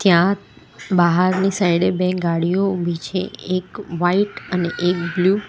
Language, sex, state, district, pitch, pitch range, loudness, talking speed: Gujarati, female, Gujarat, Valsad, 180 Hz, 175-190 Hz, -19 LUFS, 155 wpm